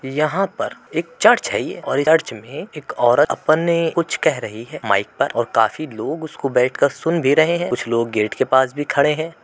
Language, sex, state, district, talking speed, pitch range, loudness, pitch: Hindi, male, Uttar Pradesh, Muzaffarnagar, 220 wpm, 130-165 Hz, -19 LUFS, 150 Hz